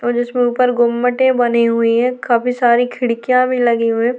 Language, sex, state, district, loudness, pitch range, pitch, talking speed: Hindi, female, Uttarakhand, Tehri Garhwal, -15 LUFS, 235-250 Hz, 245 Hz, 200 wpm